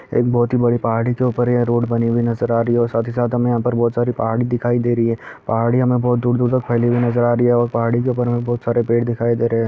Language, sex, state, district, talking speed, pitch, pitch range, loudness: Hindi, male, Bihar, Gopalganj, 320 wpm, 120 Hz, 115-120 Hz, -18 LUFS